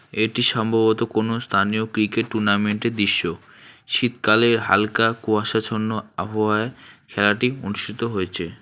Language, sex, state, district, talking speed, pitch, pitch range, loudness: Bengali, male, West Bengal, Alipurduar, 95 wpm, 110 Hz, 105-115 Hz, -21 LUFS